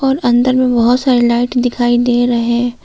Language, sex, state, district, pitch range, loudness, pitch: Hindi, female, Jharkhand, Palamu, 240-250 Hz, -13 LUFS, 245 Hz